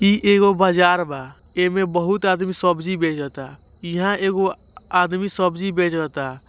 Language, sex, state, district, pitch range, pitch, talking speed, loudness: Hindi, male, Bihar, East Champaran, 170-195 Hz, 180 Hz, 130 wpm, -20 LUFS